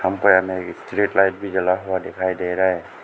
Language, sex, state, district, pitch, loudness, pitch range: Hindi, male, Arunachal Pradesh, Lower Dibang Valley, 95 Hz, -20 LUFS, 90-95 Hz